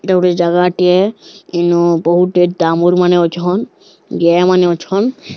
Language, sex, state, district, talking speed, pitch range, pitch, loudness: Odia, female, Odisha, Sambalpur, 135 wpm, 170-180 Hz, 180 Hz, -13 LUFS